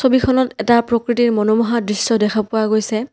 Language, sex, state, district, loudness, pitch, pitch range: Assamese, female, Assam, Kamrup Metropolitan, -16 LUFS, 230 Hz, 215-240 Hz